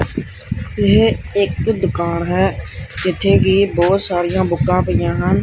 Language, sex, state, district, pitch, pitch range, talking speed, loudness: Punjabi, male, Punjab, Kapurthala, 185 Hz, 175-195 Hz, 120 wpm, -16 LUFS